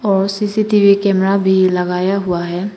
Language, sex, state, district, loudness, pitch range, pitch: Hindi, female, Arunachal Pradesh, Papum Pare, -14 LUFS, 185-200 Hz, 195 Hz